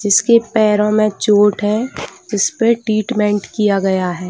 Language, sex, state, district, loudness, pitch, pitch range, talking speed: Hindi, female, Bihar, Jahanabad, -15 LUFS, 210 Hz, 205-220 Hz, 155 wpm